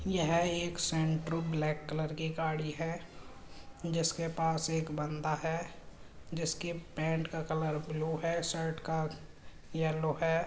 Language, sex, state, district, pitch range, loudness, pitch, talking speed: Hindi, male, Uttar Pradesh, Jalaun, 155-165 Hz, -34 LUFS, 160 Hz, 130 wpm